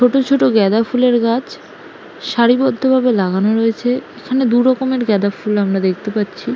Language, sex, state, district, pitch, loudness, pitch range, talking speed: Bengali, female, West Bengal, Malda, 235 Hz, -15 LUFS, 210-255 Hz, 145 wpm